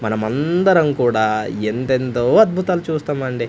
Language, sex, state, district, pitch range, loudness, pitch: Telugu, male, Andhra Pradesh, Manyam, 110-165 Hz, -17 LUFS, 130 Hz